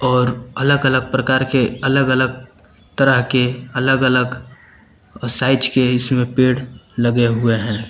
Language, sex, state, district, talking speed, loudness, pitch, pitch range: Hindi, male, Uttar Pradesh, Lucknow, 135 wpm, -16 LUFS, 125 Hz, 120-130 Hz